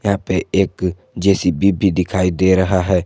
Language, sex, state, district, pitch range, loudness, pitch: Hindi, male, Jharkhand, Garhwa, 90-100 Hz, -17 LUFS, 95 Hz